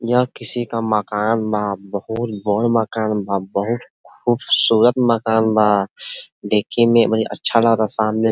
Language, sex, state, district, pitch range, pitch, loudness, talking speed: Bhojpuri, male, Uttar Pradesh, Ghazipur, 105-115 Hz, 110 Hz, -18 LUFS, 145 wpm